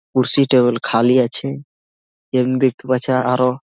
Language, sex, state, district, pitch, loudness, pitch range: Bengali, male, West Bengal, Malda, 125 Hz, -16 LUFS, 115-130 Hz